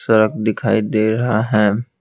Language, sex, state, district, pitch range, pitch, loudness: Hindi, male, Bihar, Patna, 110-115 Hz, 110 Hz, -17 LUFS